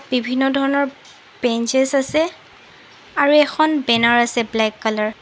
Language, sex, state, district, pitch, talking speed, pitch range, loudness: Assamese, female, Assam, Sonitpur, 265 Hz, 125 wpm, 235-280 Hz, -18 LUFS